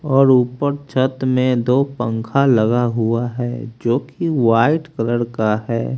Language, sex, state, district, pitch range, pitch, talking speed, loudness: Hindi, male, Haryana, Rohtak, 115-135 Hz, 125 Hz, 140 wpm, -18 LUFS